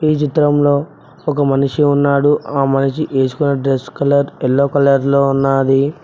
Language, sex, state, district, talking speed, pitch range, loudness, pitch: Telugu, male, Telangana, Mahabubabad, 130 wpm, 135-145 Hz, -15 LUFS, 140 Hz